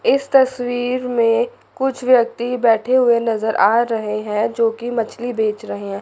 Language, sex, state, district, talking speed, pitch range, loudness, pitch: Hindi, female, Chandigarh, Chandigarh, 160 wpm, 220-250 Hz, -18 LUFS, 235 Hz